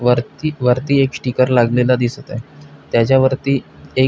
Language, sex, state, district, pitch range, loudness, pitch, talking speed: Marathi, male, Maharashtra, Pune, 125-140 Hz, -16 LUFS, 130 Hz, 145 wpm